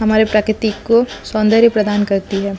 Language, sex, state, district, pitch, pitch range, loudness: Hindi, female, Chhattisgarh, Sukma, 215 Hz, 205-220 Hz, -15 LUFS